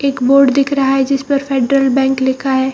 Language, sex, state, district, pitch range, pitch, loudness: Hindi, female, Bihar, Purnia, 265-275 Hz, 270 Hz, -13 LUFS